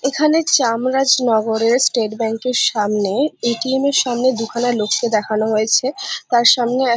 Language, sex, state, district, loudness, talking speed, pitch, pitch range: Bengali, female, West Bengal, Jhargram, -16 LUFS, 140 wpm, 240 Hz, 225-265 Hz